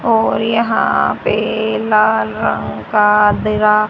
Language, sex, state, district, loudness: Hindi, female, Haryana, Rohtak, -14 LUFS